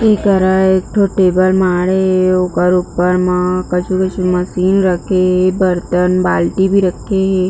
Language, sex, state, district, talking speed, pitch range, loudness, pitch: Chhattisgarhi, female, Chhattisgarh, Jashpur, 145 wpm, 180-190 Hz, -13 LUFS, 185 Hz